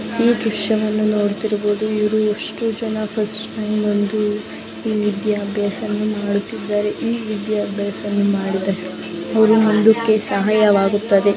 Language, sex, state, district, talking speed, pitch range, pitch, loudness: Kannada, female, Karnataka, Dharwad, 110 wpm, 205-215 Hz, 210 Hz, -19 LUFS